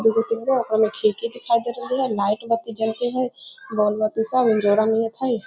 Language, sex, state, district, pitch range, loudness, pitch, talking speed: Maithili, female, Bihar, Muzaffarpur, 220-245 Hz, -22 LUFS, 230 Hz, 220 wpm